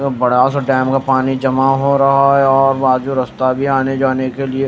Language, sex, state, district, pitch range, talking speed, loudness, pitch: Hindi, male, Odisha, Nuapada, 130-135 Hz, 220 wpm, -14 LUFS, 135 Hz